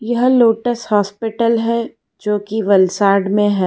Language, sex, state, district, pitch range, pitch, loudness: Hindi, female, Gujarat, Valsad, 200-230 Hz, 215 Hz, -16 LUFS